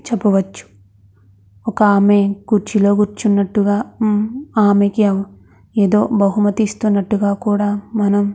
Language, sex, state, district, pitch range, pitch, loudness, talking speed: Telugu, female, Andhra Pradesh, Krishna, 200-210 Hz, 205 Hz, -16 LUFS, 80 wpm